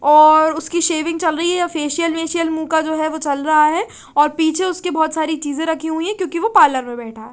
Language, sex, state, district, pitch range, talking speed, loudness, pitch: Hindi, female, Chandigarh, Chandigarh, 305-335 Hz, 255 wpm, -17 LUFS, 320 Hz